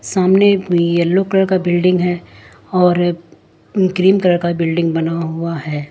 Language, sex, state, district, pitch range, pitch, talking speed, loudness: Hindi, female, Jharkhand, Ranchi, 170-185 Hz, 175 Hz, 140 wpm, -15 LUFS